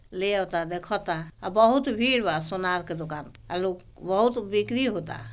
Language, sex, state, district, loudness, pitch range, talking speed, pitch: Bhojpuri, female, Bihar, Gopalganj, -26 LUFS, 170-220 Hz, 145 wpm, 185 Hz